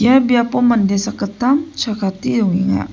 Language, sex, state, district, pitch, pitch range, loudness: Garo, female, Meghalaya, West Garo Hills, 225 Hz, 200-250 Hz, -16 LUFS